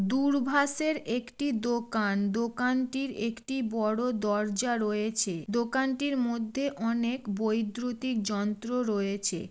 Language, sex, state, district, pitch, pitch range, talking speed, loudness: Bengali, female, West Bengal, Jalpaiguri, 235 Hz, 210-255 Hz, 90 wpm, -30 LUFS